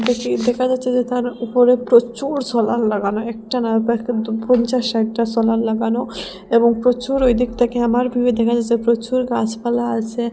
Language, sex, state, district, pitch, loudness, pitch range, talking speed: Bengali, female, Assam, Hailakandi, 235 Hz, -18 LUFS, 225-245 Hz, 170 wpm